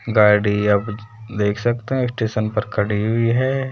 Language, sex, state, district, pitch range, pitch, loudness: Hindi, male, Rajasthan, Jaipur, 105-120 Hz, 110 Hz, -19 LUFS